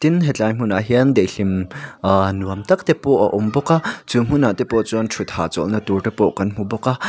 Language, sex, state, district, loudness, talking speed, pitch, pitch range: Mizo, male, Mizoram, Aizawl, -18 LUFS, 235 wpm, 110 Hz, 95-130 Hz